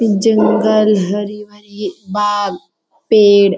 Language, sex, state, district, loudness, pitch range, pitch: Hindi, female, Bihar, Jamui, -14 LUFS, 200-215 Hz, 205 Hz